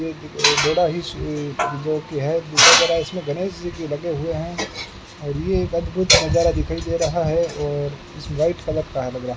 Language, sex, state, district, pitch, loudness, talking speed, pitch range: Hindi, male, Rajasthan, Bikaner, 155 Hz, -19 LUFS, 190 wpm, 145-170 Hz